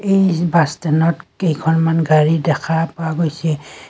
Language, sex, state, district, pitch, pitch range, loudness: Assamese, female, Assam, Kamrup Metropolitan, 165 Hz, 155-170 Hz, -17 LUFS